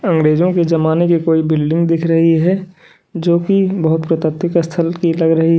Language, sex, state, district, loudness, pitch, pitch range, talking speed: Hindi, male, Uttar Pradesh, Lalitpur, -14 LUFS, 165 Hz, 160-175 Hz, 185 wpm